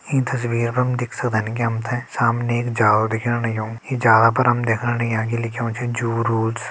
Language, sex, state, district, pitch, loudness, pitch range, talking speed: Hindi, male, Uttarakhand, Tehri Garhwal, 115 Hz, -20 LUFS, 115-120 Hz, 230 wpm